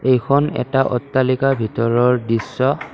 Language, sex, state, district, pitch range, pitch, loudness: Assamese, male, Assam, Kamrup Metropolitan, 120-135 Hz, 130 Hz, -18 LUFS